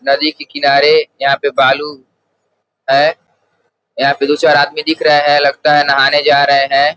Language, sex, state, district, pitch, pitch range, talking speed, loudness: Hindi, male, Uttar Pradesh, Gorakhpur, 145 Hz, 140-150 Hz, 180 wpm, -11 LUFS